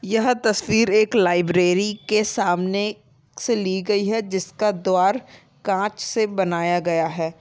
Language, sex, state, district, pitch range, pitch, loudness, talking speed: Hindi, female, Uttarakhand, Tehri Garhwal, 180-215 Hz, 205 Hz, -21 LUFS, 140 wpm